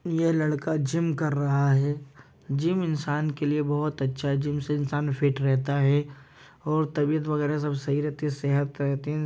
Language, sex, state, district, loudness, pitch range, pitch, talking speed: Hindi, male, Uttar Pradesh, Jyotiba Phule Nagar, -26 LUFS, 140-150 Hz, 145 Hz, 190 wpm